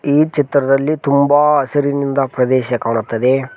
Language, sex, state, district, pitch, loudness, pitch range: Kannada, male, Karnataka, Koppal, 140 Hz, -15 LUFS, 130-145 Hz